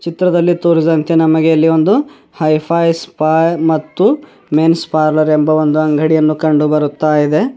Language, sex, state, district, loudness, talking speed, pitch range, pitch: Kannada, male, Karnataka, Bidar, -13 LUFS, 120 wpm, 155-165 Hz, 160 Hz